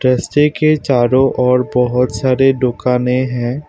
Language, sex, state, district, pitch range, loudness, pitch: Hindi, male, Assam, Kamrup Metropolitan, 125-135 Hz, -14 LUFS, 130 Hz